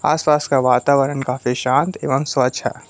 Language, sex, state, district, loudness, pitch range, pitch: Hindi, male, Jharkhand, Palamu, -18 LUFS, 125-150 Hz, 135 Hz